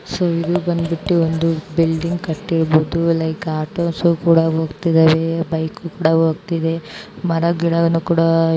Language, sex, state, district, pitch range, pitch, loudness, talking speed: Kannada, female, Karnataka, Bijapur, 160-170 Hz, 165 Hz, -18 LUFS, 110 wpm